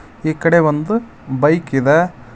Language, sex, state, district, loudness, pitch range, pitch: Kannada, male, Karnataka, Koppal, -16 LUFS, 135-170 Hz, 155 Hz